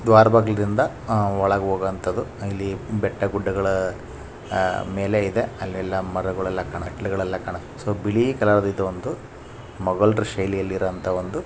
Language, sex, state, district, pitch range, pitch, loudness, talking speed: Kannada, male, Karnataka, Raichur, 95-105 Hz, 95 Hz, -23 LUFS, 130 wpm